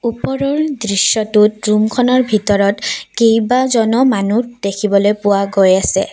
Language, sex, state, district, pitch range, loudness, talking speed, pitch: Assamese, female, Assam, Kamrup Metropolitan, 200-240 Hz, -14 LUFS, 100 wpm, 215 Hz